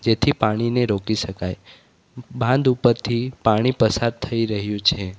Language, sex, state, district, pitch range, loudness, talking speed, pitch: Gujarati, male, Gujarat, Valsad, 105-125 Hz, -21 LUFS, 125 wpm, 115 Hz